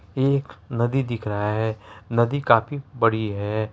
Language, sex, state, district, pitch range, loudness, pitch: Hindi, male, Bihar, Araria, 105-130 Hz, -23 LUFS, 115 Hz